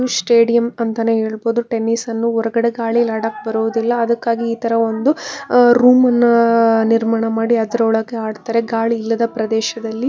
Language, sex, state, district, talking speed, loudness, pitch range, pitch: Kannada, female, Karnataka, Bangalore, 125 wpm, -16 LUFS, 225-235 Hz, 230 Hz